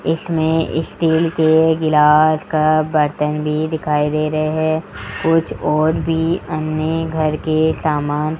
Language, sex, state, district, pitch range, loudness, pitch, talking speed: Hindi, male, Rajasthan, Jaipur, 155-160 Hz, -17 LUFS, 155 Hz, 135 wpm